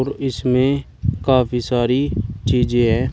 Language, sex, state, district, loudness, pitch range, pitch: Hindi, male, Uttar Pradesh, Shamli, -19 LUFS, 115-130 Hz, 125 Hz